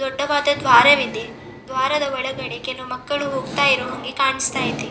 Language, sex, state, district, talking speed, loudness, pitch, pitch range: Kannada, female, Karnataka, Dakshina Kannada, 145 wpm, -19 LUFS, 265 Hz, 260-285 Hz